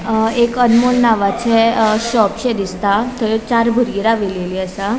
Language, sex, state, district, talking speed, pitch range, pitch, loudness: Konkani, female, Goa, North and South Goa, 145 wpm, 205-235 Hz, 225 Hz, -15 LUFS